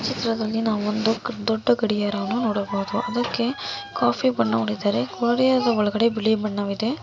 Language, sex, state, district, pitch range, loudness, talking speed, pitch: Kannada, female, Karnataka, Mysore, 200-235 Hz, -23 LUFS, 110 wpm, 220 Hz